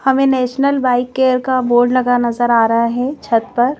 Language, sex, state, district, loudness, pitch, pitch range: Hindi, female, Madhya Pradesh, Bhopal, -15 LUFS, 250 Hz, 240-265 Hz